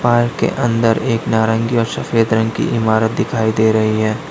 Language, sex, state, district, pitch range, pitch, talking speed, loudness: Hindi, male, Uttar Pradesh, Lalitpur, 110-115 Hz, 115 Hz, 195 wpm, -16 LUFS